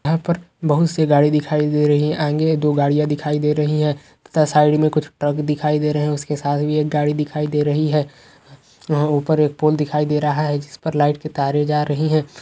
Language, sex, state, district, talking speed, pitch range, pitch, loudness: Magahi, male, Bihar, Gaya, 240 wpm, 145-150 Hz, 150 Hz, -18 LUFS